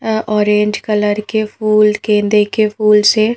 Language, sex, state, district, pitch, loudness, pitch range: Hindi, female, Madhya Pradesh, Bhopal, 210 Hz, -13 LUFS, 210-215 Hz